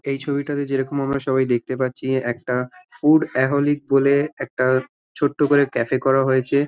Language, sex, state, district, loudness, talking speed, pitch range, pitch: Bengali, male, West Bengal, Malda, -20 LUFS, 160 wpm, 130-145 Hz, 135 Hz